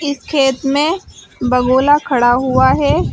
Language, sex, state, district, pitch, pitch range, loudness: Hindi, female, Uttar Pradesh, Shamli, 260 Hz, 240-285 Hz, -14 LUFS